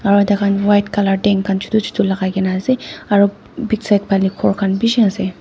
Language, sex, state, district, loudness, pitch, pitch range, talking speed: Nagamese, female, Nagaland, Dimapur, -16 LUFS, 200 Hz, 195-205 Hz, 220 wpm